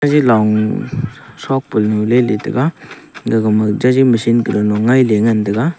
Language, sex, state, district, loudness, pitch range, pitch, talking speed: Wancho, male, Arunachal Pradesh, Longding, -14 LUFS, 110-130 Hz, 115 Hz, 165 wpm